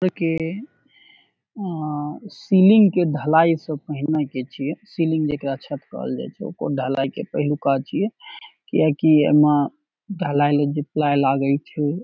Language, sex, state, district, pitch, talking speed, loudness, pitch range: Maithili, male, Bihar, Saharsa, 150 Hz, 155 wpm, -21 LUFS, 145-170 Hz